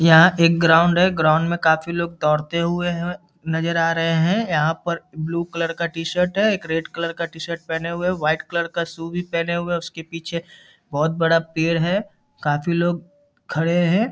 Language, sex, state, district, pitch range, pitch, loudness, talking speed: Hindi, male, Bihar, Muzaffarpur, 165-175 Hz, 170 Hz, -21 LUFS, 200 wpm